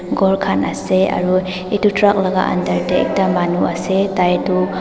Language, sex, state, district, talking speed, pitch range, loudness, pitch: Nagamese, female, Nagaland, Dimapur, 175 wpm, 185-195 Hz, -16 LUFS, 185 Hz